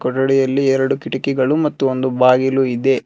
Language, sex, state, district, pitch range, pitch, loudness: Kannada, male, Karnataka, Bangalore, 130-135 Hz, 135 Hz, -16 LUFS